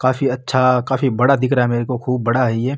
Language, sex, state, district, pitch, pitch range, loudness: Marwari, male, Rajasthan, Nagaur, 130 Hz, 125-130 Hz, -17 LUFS